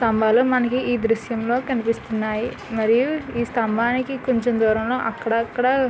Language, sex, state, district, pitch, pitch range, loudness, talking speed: Telugu, female, Andhra Pradesh, Krishna, 235 Hz, 225-250 Hz, -21 LUFS, 130 wpm